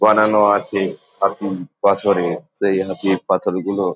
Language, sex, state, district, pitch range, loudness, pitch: Bengali, male, West Bengal, Jhargram, 95-100 Hz, -18 LUFS, 100 Hz